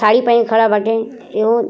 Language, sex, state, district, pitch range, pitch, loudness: Bhojpuri, female, Uttar Pradesh, Gorakhpur, 215-235 Hz, 225 Hz, -15 LUFS